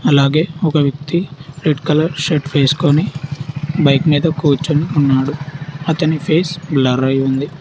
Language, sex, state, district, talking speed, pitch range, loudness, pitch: Telugu, male, Telangana, Hyderabad, 125 wpm, 140-155 Hz, -16 LUFS, 150 Hz